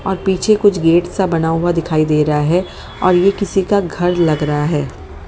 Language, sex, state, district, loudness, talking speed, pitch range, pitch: Hindi, female, Haryana, Jhajjar, -15 LUFS, 215 wpm, 155-190 Hz, 175 Hz